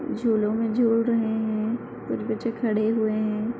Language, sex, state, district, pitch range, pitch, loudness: Hindi, female, Uttar Pradesh, Muzaffarnagar, 215-230 Hz, 225 Hz, -25 LUFS